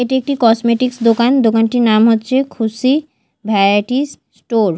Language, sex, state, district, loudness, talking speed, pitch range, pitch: Bengali, female, Odisha, Malkangiri, -14 LUFS, 150 wpm, 225-260 Hz, 235 Hz